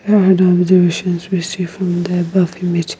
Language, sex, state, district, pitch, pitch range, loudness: English, female, Nagaland, Kohima, 180 Hz, 175-185 Hz, -15 LUFS